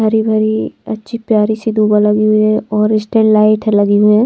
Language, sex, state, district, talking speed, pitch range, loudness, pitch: Hindi, female, Bihar, Patna, 210 wpm, 210-220 Hz, -13 LUFS, 215 Hz